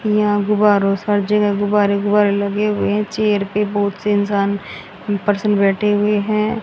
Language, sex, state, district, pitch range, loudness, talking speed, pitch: Hindi, female, Haryana, Rohtak, 200-210 Hz, -17 LUFS, 165 wpm, 205 Hz